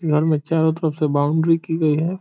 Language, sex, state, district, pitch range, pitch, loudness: Hindi, male, Bihar, Saran, 150-165 Hz, 160 Hz, -19 LUFS